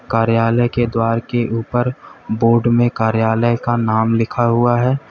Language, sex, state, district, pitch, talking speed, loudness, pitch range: Hindi, male, Uttar Pradesh, Lalitpur, 115 Hz, 155 wpm, -16 LUFS, 115-120 Hz